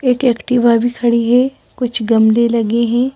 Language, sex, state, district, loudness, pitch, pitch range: Hindi, female, Madhya Pradesh, Bhopal, -14 LUFS, 240 Hz, 230-250 Hz